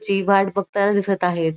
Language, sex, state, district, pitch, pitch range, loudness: Marathi, female, Maharashtra, Dhule, 195 Hz, 185-200 Hz, -19 LUFS